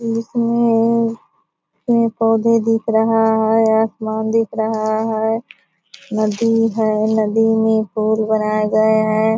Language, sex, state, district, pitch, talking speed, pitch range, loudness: Hindi, female, Bihar, Purnia, 220 Hz, 110 wpm, 220-225 Hz, -17 LUFS